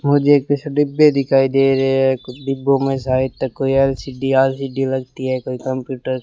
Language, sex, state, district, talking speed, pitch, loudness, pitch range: Hindi, male, Rajasthan, Bikaner, 195 wpm, 135 Hz, -17 LUFS, 130-135 Hz